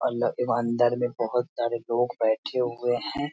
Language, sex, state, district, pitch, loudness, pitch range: Hindi, male, Bihar, Muzaffarpur, 120 Hz, -26 LUFS, 115-125 Hz